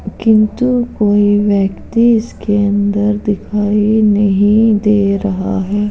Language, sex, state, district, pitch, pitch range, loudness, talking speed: Hindi, female, Uttar Pradesh, Jalaun, 205 Hz, 205-215 Hz, -13 LUFS, 100 wpm